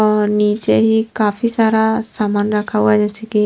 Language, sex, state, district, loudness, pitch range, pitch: Hindi, female, Himachal Pradesh, Shimla, -16 LUFS, 210-220 Hz, 215 Hz